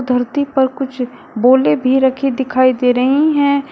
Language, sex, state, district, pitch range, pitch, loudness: Hindi, female, Uttar Pradesh, Shamli, 250-275 Hz, 260 Hz, -14 LUFS